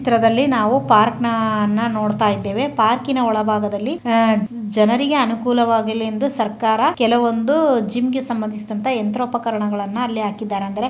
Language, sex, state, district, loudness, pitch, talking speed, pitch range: Kannada, female, Karnataka, Chamarajanagar, -18 LUFS, 225 Hz, 100 wpm, 215-245 Hz